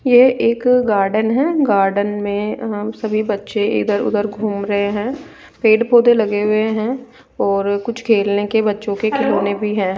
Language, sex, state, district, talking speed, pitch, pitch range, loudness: Hindi, female, Rajasthan, Jaipur, 170 wpm, 215 Hz, 205-235 Hz, -17 LUFS